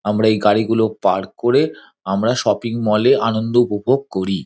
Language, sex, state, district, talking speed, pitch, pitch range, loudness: Bengali, male, West Bengal, Dakshin Dinajpur, 160 wpm, 110 Hz, 105-115 Hz, -17 LUFS